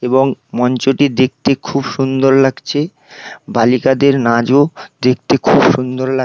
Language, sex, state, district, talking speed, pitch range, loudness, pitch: Bengali, male, West Bengal, Paschim Medinipur, 125 wpm, 125-140 Hz, -14 LUFS, 135 Hz